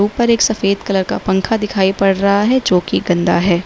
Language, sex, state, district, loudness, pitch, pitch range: Hindi, female, Uttar Pradesh, Lalitpur, -15 LUFS, 195 Hz, 190-220 Hz